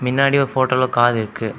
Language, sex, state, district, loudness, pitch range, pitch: Tamil, male, Tamil Nadu, Kanyakumari, -17 LUFS, 120-130 Hz, 130 Hz